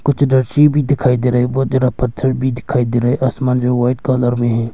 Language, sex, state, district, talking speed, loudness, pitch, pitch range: Hindi, male, Arunachal Pradesh, Longding, 255 wpm, -15 LUFS, 125 Hz, 125-130 Hz